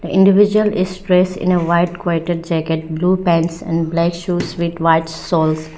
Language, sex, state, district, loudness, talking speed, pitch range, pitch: English, female, Arunachal Pradesh, Lower Dibang Valley, -16 LUFS, 175 wpm, 165-180 Hz, 170 Hz